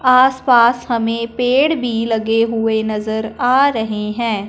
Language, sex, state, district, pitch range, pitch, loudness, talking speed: Hindi, female, Punjab, Fazilka, 220-250 Hz, 230 Hz, -16 LUFS, 135 wpm